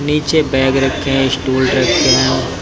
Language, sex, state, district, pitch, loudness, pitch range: Hindi, male, Haryana, Jhajjar, 135 Hz, -13 LUFS, 130-135 Hz